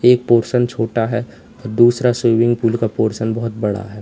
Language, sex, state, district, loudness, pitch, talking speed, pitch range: Hindi, male, Uttar Pradesh, Lalitpur, -17 LUFS, 115 Hz, 180 wpm, 110-120 Hz